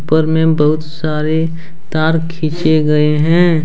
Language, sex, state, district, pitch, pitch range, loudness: Hindi, male, Jharkhand, Deoghar, 155 Hz, 155-165 Hz, -14 LUFS